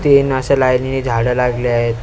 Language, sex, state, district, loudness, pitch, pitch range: Marathi, male, Maharashtra, Mumbai Suburban, -15 LUFS, 125 Hz, 120-135 Hz